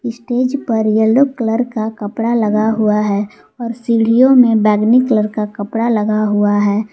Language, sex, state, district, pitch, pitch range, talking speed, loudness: Hindi, female, Jharkhand, Palamu, 225 Hz, 210-235 Hz, 165 wpm, -14 LUFS